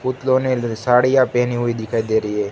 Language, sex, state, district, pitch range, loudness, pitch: Hindi, male, Gujarat, Gandhinagar, 110-130 Hz, -18 LUFS, 120 Hz